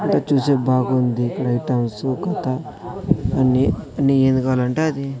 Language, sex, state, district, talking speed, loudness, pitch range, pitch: Telugu, male, Andhra Pradesh, Sri Satya Sai, 125 wpm, -19 LUFS, 125-135 Hz, 130 Hz